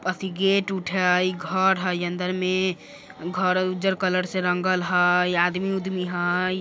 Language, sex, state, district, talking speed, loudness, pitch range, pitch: Bajjika, female, Bihar, Vaishali, 155 wpm, -23 LUFS, 180-185 Hz, 185 Hz